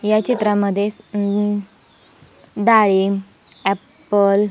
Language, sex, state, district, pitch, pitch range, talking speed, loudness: Marathi, female, Maharashtra, Sindhudurg, 205 Hz, 200-215 Hz, 80 wpm, -18 LUFS